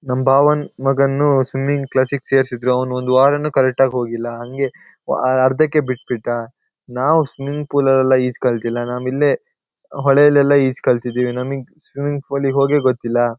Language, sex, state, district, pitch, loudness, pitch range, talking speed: Kannada, male, Karnataka, Shimoga, 135 Hz, -17 LUFS, 125-140 Hz, 120 wpm